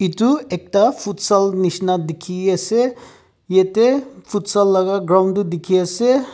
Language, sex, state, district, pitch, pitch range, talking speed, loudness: Nagamese, male, Nagaland, Kohima, 195 Hz, 185-225 Hz, 115 wpm, -17 LUFS